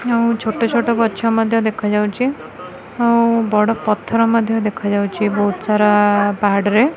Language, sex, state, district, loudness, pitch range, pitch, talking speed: Odia, female, Odisha, Khordha, -16 LUFS, 205-230 Hz, 220 Hz, 120 wpm